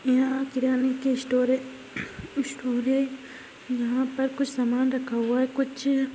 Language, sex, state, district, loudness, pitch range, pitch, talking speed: Hindi, female, Uttar Pradesh, Gorakhpur, -26 LUFS, 255-270 Hz, 260 Hz, 155 wpm